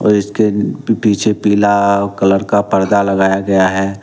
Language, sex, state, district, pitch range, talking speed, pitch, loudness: Hindi, male, Jharkhand, Ranchi, 95-105 Hz, 135 wpm, 100 Hz, -13 LUFS